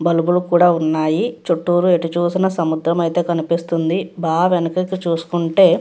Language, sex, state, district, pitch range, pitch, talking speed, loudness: Telugu, female, Andhra Pradesh, Guntur, 165-180 Hz, 170 Hz, 125 wpm, -17 LUFS